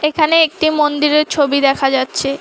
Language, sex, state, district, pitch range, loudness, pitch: Bengali, female, West Bengal, Alipurduar, 275-310 Hz, -14 LUFS, 295 Hz